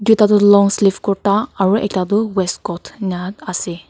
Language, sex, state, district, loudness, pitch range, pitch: Nagamese, female, Nagaland, Kohima, -16 LUFS, 185-210 Hz, 200 Hz